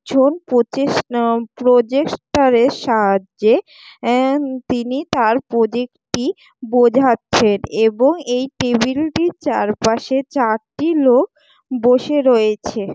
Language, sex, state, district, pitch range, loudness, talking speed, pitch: Bengali, female, West Bengal, Jalpaiguri, 235-280 Hz, -16 LUFS, 95 wpm, 250 Hz